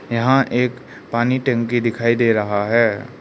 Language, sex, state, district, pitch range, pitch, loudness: Hindi, male, Arunachal Pradesh, Lower Dibang Valley, 115-125 Hz, 120 Hz, -18 LUFS